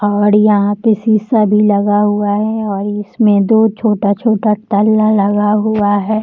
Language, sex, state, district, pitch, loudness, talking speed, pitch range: Hindi, female, Uttar Pradesh, Muzaffarnagar, 210 Hz, -13 LUFS, 155 wpm, 205-215 Hz